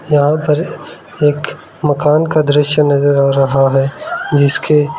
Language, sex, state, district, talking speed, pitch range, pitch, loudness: Hindi, male, Arunachal Pradesh, Lower Dibang Valley, 130 wpm, 140-150 Hz, 145 Hz, -13 LUFS